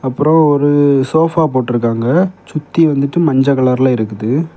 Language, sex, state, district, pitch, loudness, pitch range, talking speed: Tamil, male, Tamil Nadu, Kanyakumari, 145 Hz, -13 LUFS, 130-160 Hz, 120 wpm